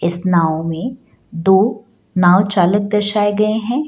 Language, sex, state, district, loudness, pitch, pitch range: Hindi, female, Bihar, Gaya, -15 LUFS, 200 Hz, 175-215 Hz